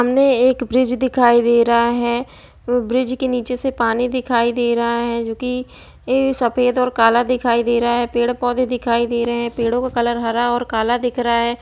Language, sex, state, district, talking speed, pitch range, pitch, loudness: Hindi, female, Bihar, East Champaran, 205 wpm, 235-250 Hz, 240 Hz, -17 LUFS